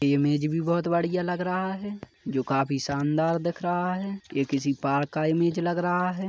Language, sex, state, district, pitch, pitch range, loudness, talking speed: Hindi, male, Chhattisgarh, Kabirdham, 170 Hz, 140-180 Hz, -26 LUFS, 190 wpm